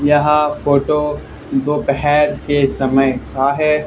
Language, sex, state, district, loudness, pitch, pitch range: Hindi, male, Haryana, Charkhi Dadri, -16 LUFS, 145 Hz, 140-150 Hz